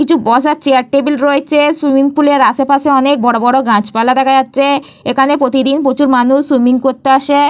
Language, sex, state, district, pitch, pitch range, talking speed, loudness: Bengali, female, West Bengal, Paschim Medinipur, 275 Hz, 260-285 Hz, 175 wpm, -11 LUFS